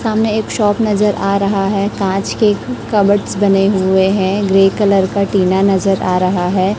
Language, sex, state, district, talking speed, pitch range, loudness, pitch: Hindi, female, Chhattisgarh, Raipur, 185 wpm, 190-205 Hz, -14 LUFS, 200 Hz